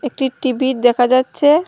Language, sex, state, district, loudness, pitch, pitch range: Bengali, female, Tripura, Dhalai, -16 LUFS, 260 Hz, 250-280 Hz